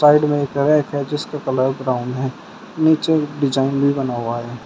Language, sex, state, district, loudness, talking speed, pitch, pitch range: Hindi, male, Uttar Pradesh, Shamli, -19 LUFS, 195 wpm, 140 Hz, 130-150 Hz